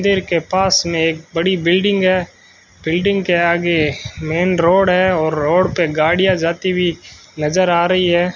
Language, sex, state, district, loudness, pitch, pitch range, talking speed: Hindi, male, Rajasthan, Bikaner, -16 LUFS, 175 Hz, 165-185 Hz, 170 wpm